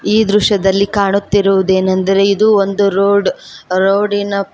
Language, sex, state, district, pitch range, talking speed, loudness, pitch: Kannada, female, Karnataka, Koppal, 195-205 Hz, 95 wpm, -13 LUFS, 200 Hz